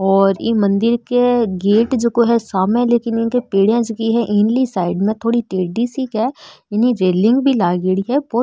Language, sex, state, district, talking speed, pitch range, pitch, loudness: Marwari, female, Rajasthan, Nagaur, 155 wpm, 200-240 Hz, 230 Hz, -16 LUFS